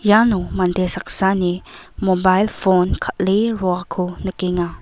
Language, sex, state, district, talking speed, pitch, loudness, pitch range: Garo, female, Meghalaya, West Garo Hills, 100 wpm, 185 Hz, -18 LUFS, 180-195 Hz